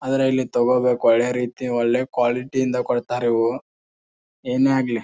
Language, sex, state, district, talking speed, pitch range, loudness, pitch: Kannada, male, Karnataka, Bijapur, 145 wpm, 120-130 Hz, -20 LUFS, 125 Hz